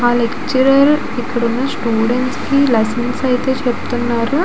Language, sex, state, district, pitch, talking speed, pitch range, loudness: Telugu, female, Andhra Pradesh, Visakhapatnam, 250 Hz, 120 wpm, 235-265 Hz, -15 LUFS